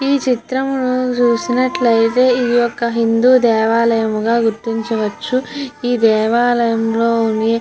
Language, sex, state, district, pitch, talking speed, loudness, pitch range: Telugu, female, Andhra Pradesh, Guntur, 235 Hz, 80 wpm, -15 LUFS, 225-255 Hz